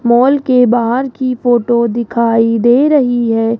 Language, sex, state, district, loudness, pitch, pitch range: Hindi, female, Rajasthan, Jaipur, -12 LUFS, 240 Hz, 235-255 Hz